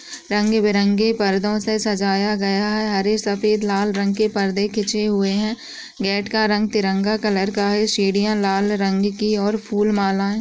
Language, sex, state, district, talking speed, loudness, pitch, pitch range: Hindi, female, Uttar Pradesh, Muzaffarnagar, 180 wpm, -19 LUFS, 210 Hz, 200-215 Hz